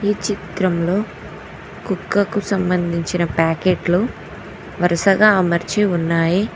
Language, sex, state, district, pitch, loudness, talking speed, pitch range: Telugu, female, Telangana, Mahabubabad, 185 Hz, -18 LUFS, 75 wpm, 170-205 Hz